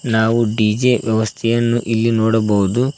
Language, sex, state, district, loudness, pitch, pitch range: Kannada, male, Karnataka, Koppal, -16 LUFS, 115 Hz, 110-120 Hz